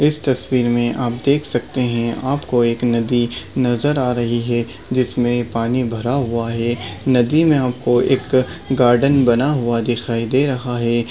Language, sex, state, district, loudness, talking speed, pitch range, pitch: Hindi, male, Maharashtra, Nagpur, -18 LUFS, 160 wpm, 120-130 Hz, 120 Hz